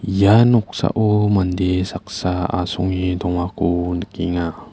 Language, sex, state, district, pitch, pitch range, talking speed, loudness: Garo, male, Meghalaya, West Garo Hills, 90 Hz, 90-100 Hz, 90 wpm, -19 LUFS